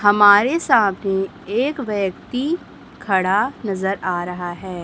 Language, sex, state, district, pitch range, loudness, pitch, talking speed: Hindi, female, Chhattisgarh, Raipur, 190-235 Hz, -19 LUFS, 200 Hz, 125 wpm